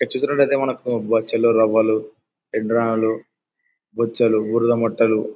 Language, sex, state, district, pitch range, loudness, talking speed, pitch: Telugu, male, Andhra Pradesh, Anantapur, 110-120 Hz, -19 LUFS, 100 wpm, 115 Hz